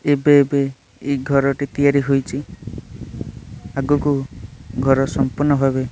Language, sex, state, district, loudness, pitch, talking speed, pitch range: Odia, male, Odisha, Nuapada, -18 LUFS, 140 Hz, 110 wpm, 135-140 Hz